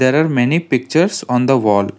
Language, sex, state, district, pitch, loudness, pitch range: English, male, Karnataka, Bangalore, 130 Hz, -15 LUFS, 125-160 Hz